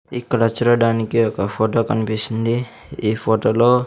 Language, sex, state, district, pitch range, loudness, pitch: Telugu, male, Andhra Pradesh, Sri Satya Sai, 110-120 Hz, -19 LUFS, 115 Hz